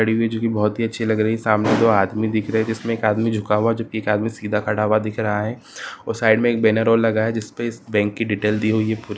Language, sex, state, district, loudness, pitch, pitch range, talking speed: Marwari, male, Rajasthan, Nagaur, -20 LUFS, 110 Hz, 105-115 Hz, 290 wpm